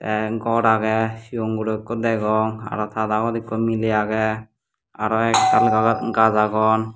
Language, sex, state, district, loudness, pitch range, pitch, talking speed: Chakma, male, Tripura, Dhalai, -20 LUFS, 110-115 Hz, 110 Hz, 155 wpm